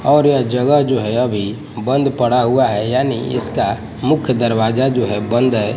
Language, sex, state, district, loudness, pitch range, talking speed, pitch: Hindi, male, Gujarat, Gandhinagar, -16 LUFS, 110-135 Hz, 185 wpm, 125 Hz